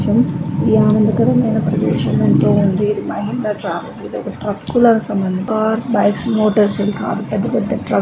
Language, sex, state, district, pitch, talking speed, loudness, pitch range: Telugu, female, Andhra Pradesh, Srikakulam, 210 Hz, 95 wpm, -16 LUFS, 205-220 Hz